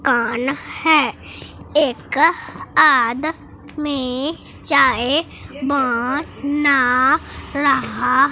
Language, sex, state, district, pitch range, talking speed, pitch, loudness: Hindi, male, Bihar, Katihar, 255-295 Hz, 60 wpm, 275 Hz, -17 LUFS